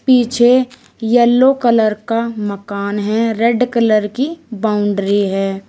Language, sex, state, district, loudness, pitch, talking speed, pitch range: Hindi, female, Uttar Pradesh, Shamli, -15 LUFS, 225 Hz, 115 wpm, 205-245 Hz